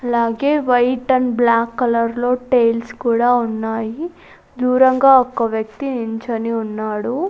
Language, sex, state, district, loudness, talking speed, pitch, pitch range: Telugu, female, Andhra Pradesh, Sri Satya Sai, -17 LUFS, 115 wpm, 240 Hz, 230-255 Hz